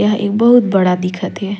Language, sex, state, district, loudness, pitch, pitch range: Surgujia, female, Chhattisgarh, Sarguja, -14 LUFS, 200 Hz, 190-210 Hz